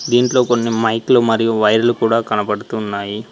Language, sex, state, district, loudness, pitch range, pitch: Telugu, male, Telangana, Mahabubabad, -16 LUFS, 105-120 Hz, 115 Hz